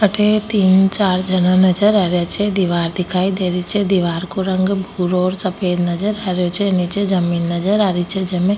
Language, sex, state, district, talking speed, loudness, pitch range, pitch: Rajasthani, female, Rajasthan, Nagaur, 215 wpm, -17 LUFS, 180-200 Hz, 185 Hz